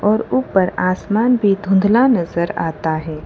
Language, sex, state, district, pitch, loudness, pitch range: Hindi, female, Gujarat, Valsad, 195 Hz, -16 LUFS, 170-220 Hz